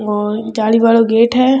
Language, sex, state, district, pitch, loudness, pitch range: Rajasthani, female, Rajasthan, Churu, 225 Hz, -13 LUFS, 215-230 Hz